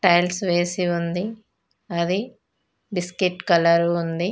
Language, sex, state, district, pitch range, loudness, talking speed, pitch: Telugu, female, Telangana, Mahabubabad, 170-185 Hz, -22 LUFS, 95 wpm, 175 Hz